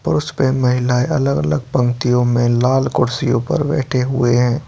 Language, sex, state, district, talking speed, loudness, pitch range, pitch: Hindi, male, Bihar, Purnia, 180 wpm, -16 LUFS, 125-130 Hz, 125 Hz